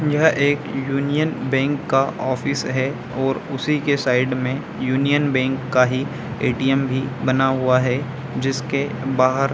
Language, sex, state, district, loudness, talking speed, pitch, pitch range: Hindi, male, Bihar, Samastipur, -20 LUFS, 150 wpm, 135 Hz, 130-140 Hz